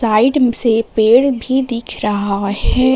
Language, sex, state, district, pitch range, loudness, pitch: Hindi, female, Jharkhand, Palamu, 215-255 Hz, -15 LUFS, 235 Hz